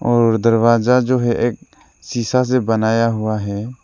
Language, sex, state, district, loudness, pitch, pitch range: Hindi, male, Arunachal Pradesh, Lower Dibang Valley, -17 LUFS, 115 Hz, 110-125 Hz